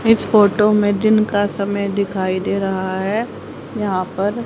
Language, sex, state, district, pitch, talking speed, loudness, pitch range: Hindi, female, Haryana, Rohtak, 205 Hz, 150 wpm, -17 LUFS, 195-215 Hz